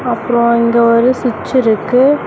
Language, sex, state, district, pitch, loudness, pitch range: Tamil, female, Tamil Nadu, Namakkal, 240 Hz, -12 LUFS, 235-250 Hz